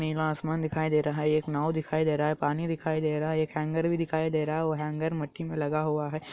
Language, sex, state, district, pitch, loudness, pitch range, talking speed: Hindi, male, Andhra Pradesh, Anantapur, 155 Hz, -29 LUFS, 150-160 Hz, 295 wpm